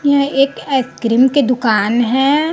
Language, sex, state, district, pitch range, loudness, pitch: Hindi, female, Chhattisgarh, Raipur, 240-280 Hz, -14 LUFS, 265 Hz